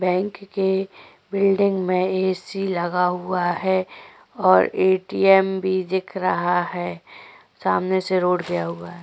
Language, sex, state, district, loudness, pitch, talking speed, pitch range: Hindi, female, Chhattisgarh, Korba, -21 LUFS, 185 Hz, 135 wpm, 180-190 Hz